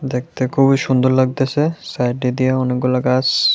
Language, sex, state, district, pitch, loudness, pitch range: Bengali, male, Tripura, West Tripura, 130 Hz, -17 LUFS, 125-135 Hz